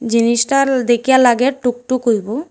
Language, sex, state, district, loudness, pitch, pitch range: Bengali, female, Assam, Hailakandi, -15 LUFS, 245 Hz, 235-260 Hz